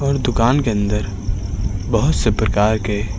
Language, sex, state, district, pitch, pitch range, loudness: Hindi, male, Uttar Pradesh, Lucknow, 105 Hz, 100-115 Hz, -18 LUFS